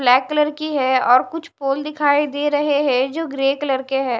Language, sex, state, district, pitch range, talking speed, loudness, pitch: Hindi, female, Maharashtra, Mumbai Suburban, 265-295 Hz, 230 wpm, -18 LUFS, 285 Hz